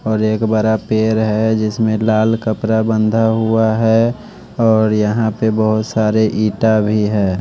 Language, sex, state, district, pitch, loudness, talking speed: Hindi, male, Bihar, West Champaran, 110 Hz, -15 LUFS, 155 wpm